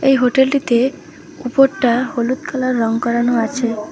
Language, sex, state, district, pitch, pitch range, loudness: Bengali, female, West Bengal, Alipurduar, 250 Hz, 235-265 Hz, -16 LUFS